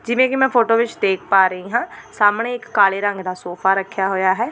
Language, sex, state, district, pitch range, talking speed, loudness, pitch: Punjabi, female, Delhi, New Delhi, 190-235 Hz, 240 wpm, -18 LUFS, 205 Hz